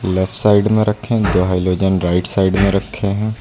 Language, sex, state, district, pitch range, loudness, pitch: Hindi, male, Uttar Pradesh, Lucknow, 95-105 Hz, -16 LUFS, 100 Hz